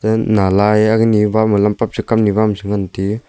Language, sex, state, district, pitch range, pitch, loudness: Wancho, male, Arunachal Pradesh, Longding, 105-110 Hz, 105 Hz, -14 LUFS